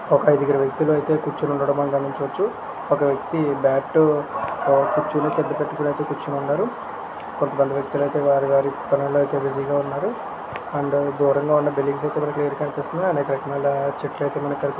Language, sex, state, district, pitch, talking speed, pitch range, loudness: Telugu, male, Andhra Pradesh, Krishna, 145 Hz, 170 wpm, 140-150 Hz, -22 LUFS